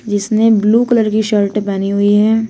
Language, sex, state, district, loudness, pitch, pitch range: Hindi, female, Uttar Pradesh, Shamli, -13 LUFS, 215 Hz, 205-220 Hz